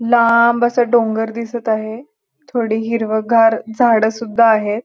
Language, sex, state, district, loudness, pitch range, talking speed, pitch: Marathi, female, Maharashtra, Pune, -15 LUFS, 220-240 Hz, 125 wpm, 230 Hz